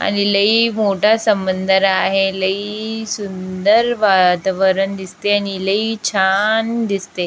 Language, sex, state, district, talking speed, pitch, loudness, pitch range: Marathi, female, Maharashtra, Aurangabad, 115 wpm, 200 Hz, -16 LUFS, 190-215 Hz